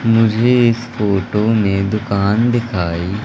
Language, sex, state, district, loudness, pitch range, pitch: Hindi, male, Madhya Pradesh, Umaria, -16 LUFS, 100-115 Hz, 110 Hz